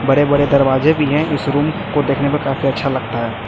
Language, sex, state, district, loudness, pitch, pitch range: Hindi, male, Chhattisgarh, Raipur, -16 LUFS, 140 Hz, 135-145 Hz